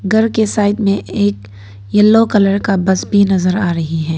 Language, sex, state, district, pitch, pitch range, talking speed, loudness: Hindi, female, Arunachal Pradesh, Papum Pare, 195 Hz, 160-205 Hz, 200 wpm, -14 LUFS